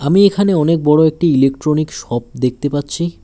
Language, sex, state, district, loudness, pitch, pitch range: Bengali, male, West Bengal, Alipurduar, -15 LUFS, 150 Hz, 140-170 Hz